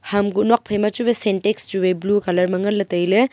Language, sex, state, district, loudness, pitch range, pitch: Wancho, female, Arunachal Pradesh, Longding, -19 LUFS, 190-210 Hz, 205 Hz